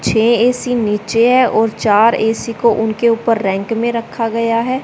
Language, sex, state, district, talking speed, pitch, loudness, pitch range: Hindi, female, Haryana, Charkhi Dadri, 185 wpm, 230 Hz, -14 LUFS, 220-235 Hz